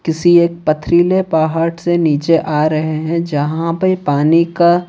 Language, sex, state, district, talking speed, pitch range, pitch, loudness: Hindi, male, Odisha, Khordha, 160 wpm, 155-170 Hz, 165 Hz, -14 LUFS